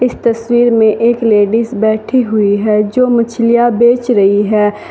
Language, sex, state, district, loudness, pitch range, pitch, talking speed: Hindi, female, Uttar Pradesh, Saharanpur, -11 LUFS, 210-240 Hz, 230 Hz, 160 wpm